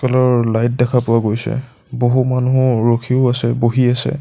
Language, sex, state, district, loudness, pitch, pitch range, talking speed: Assamese, male, Assam, Sonitpur, -16 LUFS, 125 Hz, 120-130 Hz, 155 wpm